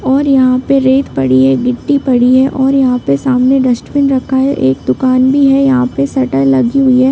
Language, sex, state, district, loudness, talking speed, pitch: Hindi, female, Bihar, Bhagalpur, -11 LUFS, 220 wpm, 255 Hz